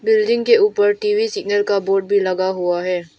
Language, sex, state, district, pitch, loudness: Hindi, female, Arunachal Pradesh, Papum Pare, 205 Hz, -17 LUFS